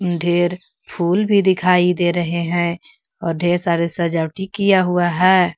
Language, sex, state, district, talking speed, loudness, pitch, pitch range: Hindi, female, Jharkhand, Garhwa, 150 wpm, -17 LUFS, 175 Hz, 170-185 Hz